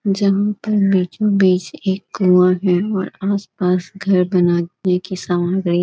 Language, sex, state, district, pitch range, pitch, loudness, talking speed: Hindi, female, Bihar, Gaya, 180-200 Hz, 185 Hz, -17 LUFS, 125 wpm